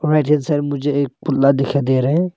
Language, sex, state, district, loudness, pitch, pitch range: Hindi, male, Arunachal Pradesh, Longding, -17 LUFS, 145 Hz, 140-150 Hz